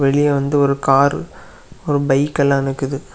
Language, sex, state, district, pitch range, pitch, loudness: Tamil, male, Tamil Nadu, Kanyakumari, 135-145 Hz, 140 Hz, -16 LUFS